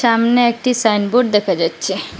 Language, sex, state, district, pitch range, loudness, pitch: Bengali, female, Assam, Hailakandi, 205-240 Hz, -15 LUFS, 230 Hz